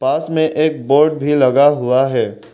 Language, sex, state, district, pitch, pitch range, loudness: Hindi, male, Arunachal Pradesh, Lower Dibang Valley, 145 Hz, 135-155 Hz, -14 LUFS